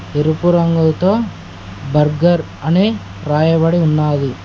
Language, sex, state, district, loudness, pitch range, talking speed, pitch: Telugu, male, Telangana, Mahabubabad, -15 LUFS, 150-175 Hz, 80 wpm, 155 Hz